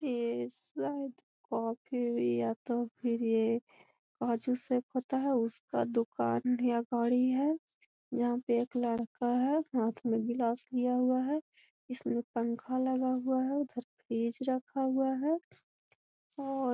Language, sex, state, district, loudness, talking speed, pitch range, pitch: Magahi, female, Bihar, Gaya, -33 LUFS, 145 wpm, 235-260 Hz, 245 Hz